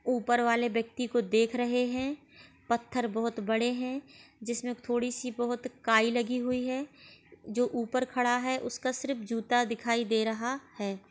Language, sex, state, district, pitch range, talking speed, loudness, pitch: Hindi, female, Bihar, Gopalganj, 230-250 Hz, 160 wpm, -30 LUFS, 245 Hz